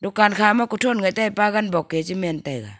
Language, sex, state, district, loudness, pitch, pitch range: Wancho, female, Arunachal Pradesh, Longding, -20 LUFS, 200 Hz, 165-215 Hz